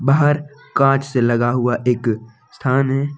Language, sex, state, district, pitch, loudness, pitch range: Hindi, male, Jharkhand, Deoghar, 130 Hz, -18 LUFS, 120-140 Hz